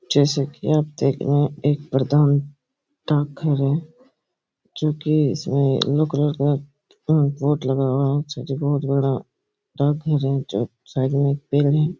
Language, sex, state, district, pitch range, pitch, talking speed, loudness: Hindi, male, Chhattisgarh, Raigarh, 140-150 Hz, 145 Hz, 170 wpm, -21 LUFS